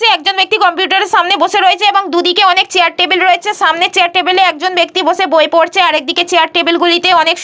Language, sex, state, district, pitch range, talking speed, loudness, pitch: Bengali, female, West Bengal, Dakshin Dinajpur, 340-380 Hz, 220 wpm, -10 LUFS, 360 Hz